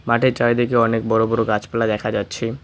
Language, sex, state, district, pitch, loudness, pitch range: Bengali, male, West Bengal, Cooch Behar, 115 Hz, -19 LUFS, 110-120 Hz